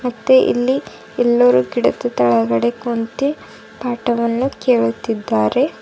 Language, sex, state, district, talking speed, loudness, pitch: Kannada, female, Karnataka, Bidar, 80 wpm, -17 LUFS, 235 Hz